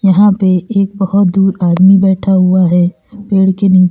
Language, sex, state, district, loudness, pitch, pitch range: Hindi, female, Uttar Pradesh, Lalitpur, -11 LUFS, 190 Hz, 185-195 Hz